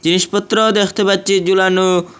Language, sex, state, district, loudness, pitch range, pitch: Bengali, male, Assam, Hailakandi, -14 LUFS, 185-205 Hz, 190 Hz